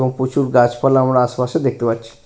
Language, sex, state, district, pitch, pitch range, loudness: Bengali, male, West Bengal, Purulia, 125 Hz, 120-130 Hz, -16 LUFS